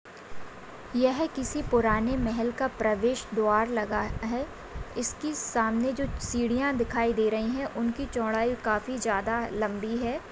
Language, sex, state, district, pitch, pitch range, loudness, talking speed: Hindi, female, Maharashtra, Aurangabad, 235 Hz, 220-255 Hz, -28 LUFS, 135 wpm